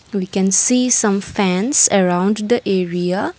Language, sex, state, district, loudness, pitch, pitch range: English, female, Assam, Kamrup Metropolitan, -15 LUFS, 200 Hz, 190-235 Hz